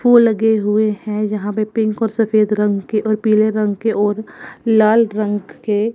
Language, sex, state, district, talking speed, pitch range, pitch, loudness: Hindi, female, Punjab, Kapurthala, 190 wpm, 210-220 Hz, 215 Hz, -16 LUFS